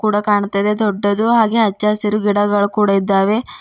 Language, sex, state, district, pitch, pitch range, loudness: Kannada, female, Karnataka, Bidar, 210 Hz, 205-215 Hz, -15 LUFS